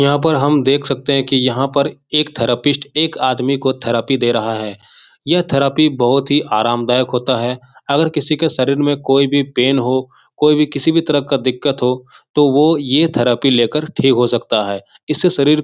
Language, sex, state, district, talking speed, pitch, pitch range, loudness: Hindi, male, Bihar, Jahanabad, 205 wpm, 140 Hz, 125-150 Hz, -15 LUFS